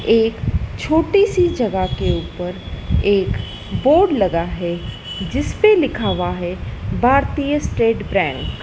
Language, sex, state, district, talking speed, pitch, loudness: Hindi, female, Madhya Pradesh, Dhar, 125 wpm, 250 Hz, -18 LUFS